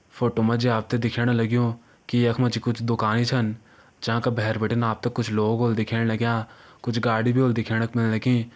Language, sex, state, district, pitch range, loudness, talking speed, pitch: Hindi, male, Uttarakhand, Uttarkashi, 115-120 Hz, -24 LUFS, 210 wpm, 115 Hz